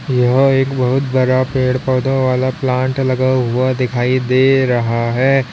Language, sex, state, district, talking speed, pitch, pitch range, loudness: Hindi, male, Uttar Pradesh, Lalitpur, 150 wpm, 130 Hz, 125-130 Hz, -15 LUFS